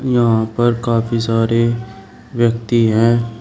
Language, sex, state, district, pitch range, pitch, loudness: Hindi, male, Uttar Pradesh, Shamli, 115-120 Hz, 115 Hz, -16 LUFS